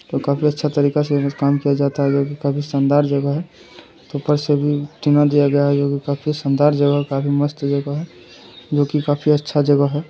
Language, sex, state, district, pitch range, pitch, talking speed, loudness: Hindi, male, Bihar, Araria, 140-145 Hz, 145 Hz, 225 wpm, -18 LUFS